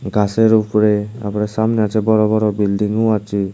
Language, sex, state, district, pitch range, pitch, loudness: Bengali, male, Tripura, Unakoti, 105-110 Hz, 105 Hz, -16 LUFS